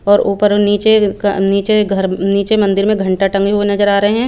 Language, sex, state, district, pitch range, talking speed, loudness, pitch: Hindi, female, Chandigarh, Chandigarh, 195-205 Hz, 210 wpm, -13 LUFS, 205 Hz